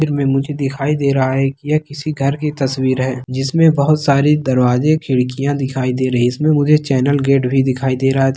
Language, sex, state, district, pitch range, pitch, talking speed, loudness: Hindi, male, Bihar, Begusarai, 130-150 Hz, 135 Hz, 230 wpm, -16 LUFS